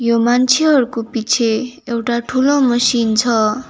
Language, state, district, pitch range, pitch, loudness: Nepali, West Bengal, Darjeeling, 230-255 Hz, 240 Hz, -15 LUFS